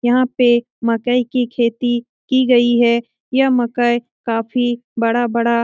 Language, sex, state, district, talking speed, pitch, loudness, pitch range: Hindi, female, Bihar, Lakhisarai, 140 wpm, 240 Hz, -17 LUFS, 235-250 Hz